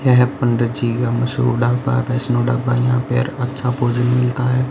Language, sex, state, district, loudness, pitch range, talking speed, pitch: Hindi, male, Haryana, Rohtak, -18 LUFS, 120-125 Hz, 190 wpm, 125 Hz